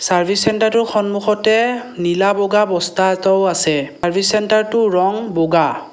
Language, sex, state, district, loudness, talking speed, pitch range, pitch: Assamese, male, Assam, Kamrup Metropolitan, -16 LUFS, 120 wpm, 175-215 Hz, 200 Hz